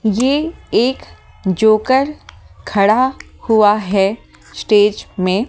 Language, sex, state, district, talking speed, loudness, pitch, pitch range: Hindi, female, Delhi, New Delhi, 90 wpm, -15 LUFS, 215 Hz, 205-255 Hz